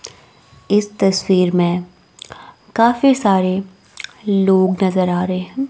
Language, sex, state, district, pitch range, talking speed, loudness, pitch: Hindi, female, Himachal Pradesh, Shimla, 185-205 Hz, 105 wpm, -16 LUFS, 190 Hz